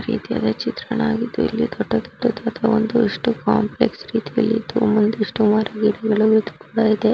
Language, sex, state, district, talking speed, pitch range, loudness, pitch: Kannada, female, Karnataka, Raichur, 90 wpm, 215-225 Hz, -20 LUFS, 220 Hz